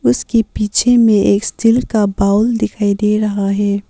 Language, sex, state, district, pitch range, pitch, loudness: Hindi, female, Arunachal Pradesh, Papum Pare, 200-225 Hz, 210 Hz, -14 LUFS